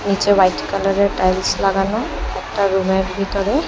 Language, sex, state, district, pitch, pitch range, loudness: Bengali, female, Assam, Hailakandi, 195 Hz, 190-200 Hz, -18 LUFS